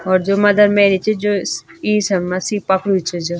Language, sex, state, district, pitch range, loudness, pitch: Garhwali, female, Uttarakhand, Tehri Garhwal, 185-205 Hz, -16 LUFS, 195 Hz